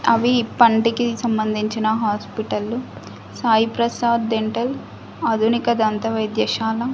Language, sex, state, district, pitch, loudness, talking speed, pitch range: Telugu, female, Andhra Pradesh, Annamaya, 230 Hz, -20 LUFS, 95 wpm, 220-235 Hz